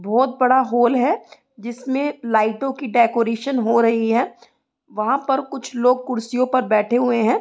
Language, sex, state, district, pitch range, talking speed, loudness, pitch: Hindi, female, Uttar Pradesh, Gorakhpur, 230-265 Hz, 160 wpm, -19 LUFS, 245 Hz